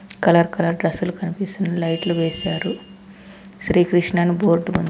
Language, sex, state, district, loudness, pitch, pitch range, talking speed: Telugu, male, Andhra Pradesh, Anantapur, -20 LUFS, 175 Hz, 170-195 Hz, 135 wpm